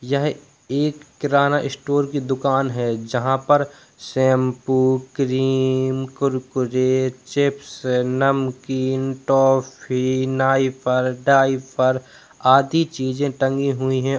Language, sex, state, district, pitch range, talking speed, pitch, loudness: Hindi, male, Uttar Pradesh, Jalaun, 130-140 Hz, 95 wpm, 130 Hz, -20 LUFS